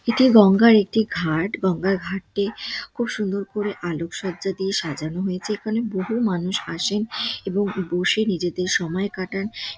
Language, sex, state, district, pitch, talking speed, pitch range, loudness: Bengali, female, West Bengal, Dakshin Dinajpur, 195 Hz, 160 wpm, 180-215 Hz, -22 LUFS